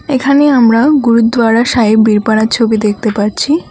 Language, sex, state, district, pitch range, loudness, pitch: Bengali, female, West Bengal, Alipurduar, 220-260 Hz, -10 LUFS, 230 Hz